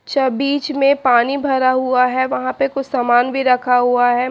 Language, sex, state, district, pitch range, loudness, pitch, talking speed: Hindi, female, Haryana, Charkhi Dadri, 250-275 Hz, -16 LUFS, 255 Hz, 195 wpm